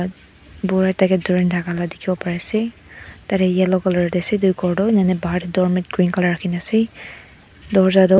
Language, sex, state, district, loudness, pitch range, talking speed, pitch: Nagamese, female, Nagaland, Dimapur, -19 LUFS, 180-190 Hz, 175 wpm, 185 Hz